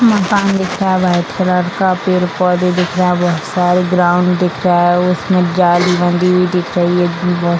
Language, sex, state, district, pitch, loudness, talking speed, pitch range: Hindi, female, Bihar, Purnia, 180 Hz, -13 LUFS, 190 wpm, 175-185 Hz